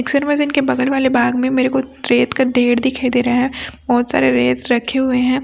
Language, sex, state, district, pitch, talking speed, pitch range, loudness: Hindi, female, Chhattisgarh, Raipur, 255 Hz, 240 wpm, 245-265 Hz, -16 LUFS